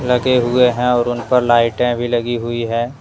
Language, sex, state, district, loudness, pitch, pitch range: Hindi, male, Jharkhand, Deoghar, -16 LUFS, 120 Hz, 120-125 Hz